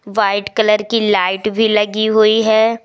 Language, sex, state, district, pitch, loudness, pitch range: Hindi, female, Madhya Pradesh, Umaria, 215 Hz, -14 LUFS, 205-220 Hz